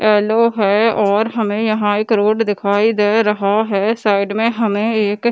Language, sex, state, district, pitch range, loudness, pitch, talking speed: Hindi, female, Bihar, Gaya, 205-225 Hz, -15 LUFS, 215 Hz, 180 wpm